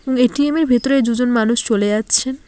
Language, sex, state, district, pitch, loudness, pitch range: Bengali, female, West Bengal, Alipurduar, 250 Hz, -16 LUFS, 230-270 Hz